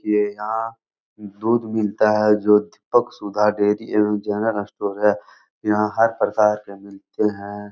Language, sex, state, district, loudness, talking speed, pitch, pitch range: Hindi, male, Bihar, Jahanabad, -20 LUFS, 155 wpm, 105 Hz, 105-110 Hz